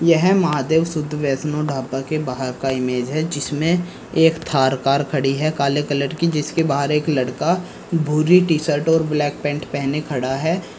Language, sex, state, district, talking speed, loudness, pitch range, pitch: Hindi, male, Uttar Pradesh, Saharanpur, 180 wpm, -19 LUFS, 140-160 Hz, 150 Hz